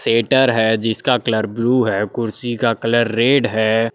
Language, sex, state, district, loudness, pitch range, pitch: Hindi, male, Jharkhand, Palamu, -17 LUFS, 110-120 Hz, 115 Hz